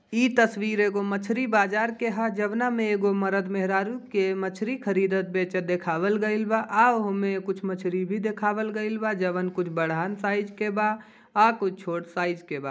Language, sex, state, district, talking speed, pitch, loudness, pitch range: Bhojpuri, male, Bihar, Gopalganj, 190 wpm, 205 Hz, -26 LUFS, 190-215 Hz